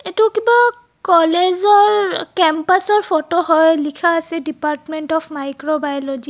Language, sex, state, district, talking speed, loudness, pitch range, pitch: Assamese, female, Assam, Kamrup Metropolitan, 135 wpm, -15 LUFS, 310-390 Hz, 330 Hz